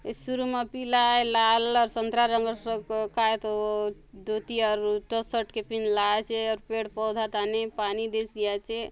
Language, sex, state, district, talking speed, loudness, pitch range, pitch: Halbi, female, Chhattisgarh, Bastar, 180 wpm, -27 LUFS, 215-230 Hz, 220 Hz